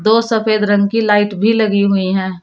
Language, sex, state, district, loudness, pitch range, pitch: Hindi, female, Uttar Pradesh, Shamli, -14 LUFS, 200-220 Hz, 205 Hz